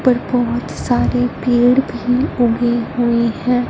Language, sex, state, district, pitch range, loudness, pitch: Hindi, female, Punjab, Fazilka, 240-250 Hz, -16 LUFS, 245 Hz